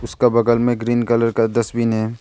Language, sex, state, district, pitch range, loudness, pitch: Hindi, male, Arunachal Pradesh, Longding, 115-120 Hz, -18 LUFS, 115 Hz